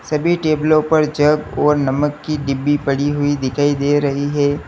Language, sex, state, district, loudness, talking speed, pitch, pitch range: Hindi, male, Uttar Pradesh, Lalitpur, -17 LUFS, 180 wpm, 145 Hz, 145-150 Hz